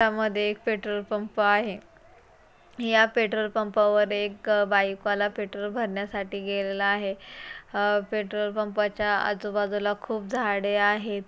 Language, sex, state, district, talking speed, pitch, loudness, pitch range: Marathi, female, Maharashtra, Pune, 120 wpm, 210 Hz, -26 LUFS, 205-215 Hz